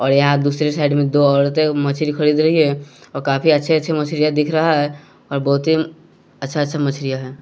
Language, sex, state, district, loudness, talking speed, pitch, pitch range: Hindi, male, Bihar, West Champaran, -17 LUFS, 210 wpm, 145 Hz, 140-155 Hz